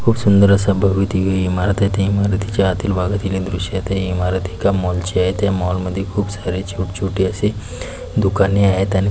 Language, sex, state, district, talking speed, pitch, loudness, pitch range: Marathi, male, Maharashtra, Pune, 210 wpm, 95 Hz, -18 LUFS, 95-100 Hz